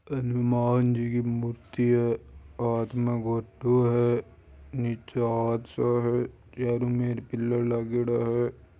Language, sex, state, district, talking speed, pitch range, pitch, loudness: Marwari, male, Rajasthan, Churu, 125 wpm, 115-120 Hz, 120 Hz, -27 LUFS